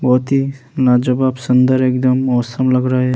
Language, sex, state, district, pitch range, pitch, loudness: Hindi, male, Uttar Pradesh, Hamirpur, 125-130 Hz, 130 Hz, -15 LUFS